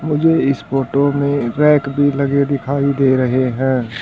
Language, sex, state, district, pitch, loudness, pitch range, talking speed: Hindi, male, Haryana, Charkhi Dadri, 140 Hz, -16 LUFS, 130-140 Hz, 165 wpm